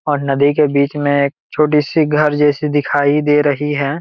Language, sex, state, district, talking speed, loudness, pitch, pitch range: Hindi, male, Jharkhand, Jamtara, 210 wpm, -15 LUFS, 145 Hz, 140-150 Hz